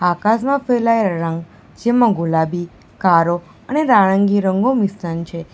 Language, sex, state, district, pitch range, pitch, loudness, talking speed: Gujarati, female, Gujarat, Valsad, 170-230 Hz, 190 Hz, -17 LUFS, 120 wpm